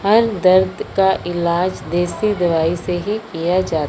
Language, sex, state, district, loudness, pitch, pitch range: Hindi, male, Punjab, Fazilka, -18 LUFS, 180 Hz, 170-195 Hz